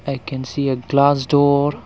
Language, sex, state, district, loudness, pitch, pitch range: English, male, Arunachal Pradesh, Longding, -18 LUFS, 140 Hz, 130-145 Hz